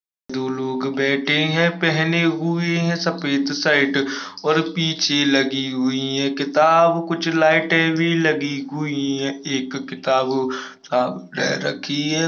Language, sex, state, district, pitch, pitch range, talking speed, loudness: Hindi, male, Uttarakhand, Uttarkashi, 145 Hz, 135-160 Hz, 130 wpm, -20 LUFS